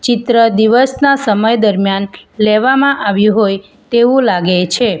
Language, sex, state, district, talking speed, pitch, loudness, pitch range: Gujarati, female, Gujarat, Valsad, 120 wpm, 220 Hz, -12 LUFS, 205-245 Hz